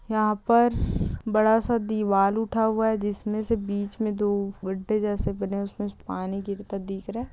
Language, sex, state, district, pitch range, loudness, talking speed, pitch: Hindi, female, Chhattisgarh, Balrampur, 200-220 Hz, -26 LUFS, 195 wpm, 210 Hz